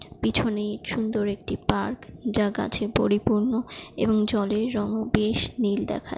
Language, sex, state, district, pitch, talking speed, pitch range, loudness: Bengali, female, West Bengal, Jalpaiguri, 215 Hz, 125 wpm, 210-225 Hz, -25 LUFS